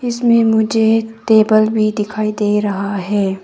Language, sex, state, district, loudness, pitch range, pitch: Hindi, female, Arunachal Pradesh, Papum Pare, -15 LUFS, 210-225 Hz, 215 Hz